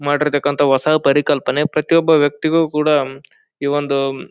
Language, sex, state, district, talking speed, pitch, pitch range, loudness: Kannada, male, Karnataka, Bijapur, 110 wpm, 145 Hz, 140-155 Hz, -16 LUFS